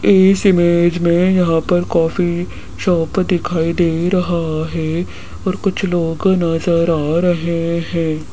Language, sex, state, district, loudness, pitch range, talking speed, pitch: Hindi, female, Rajasthan, Jaipur, -16 LUFS, 165-180 Hz, 130 wpm, 170 Hz